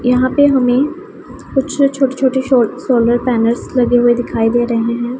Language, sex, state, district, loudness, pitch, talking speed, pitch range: Hindi, female, Punjab, Pathankot, -14 LUFS, 250 Hz, 175 wpm, 240-270 Hz